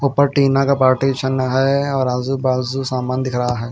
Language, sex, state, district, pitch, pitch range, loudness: Hindi, male, Haryana, Jhajjar, 130 Hz, 130-135 Hz, -17 LUFS